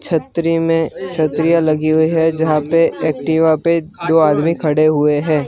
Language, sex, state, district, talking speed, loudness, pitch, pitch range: Hindi, male, Gujarat, Gandhinagar, 165 wpm, -15 LUFS, 160 Hz, 155-165 Hz